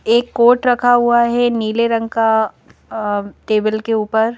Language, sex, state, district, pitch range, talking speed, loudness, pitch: Hindi, female, Madhya Pradesh, Bhopal, 220-240 Hz, 165 wpm, -16 LUFS, 225 Hz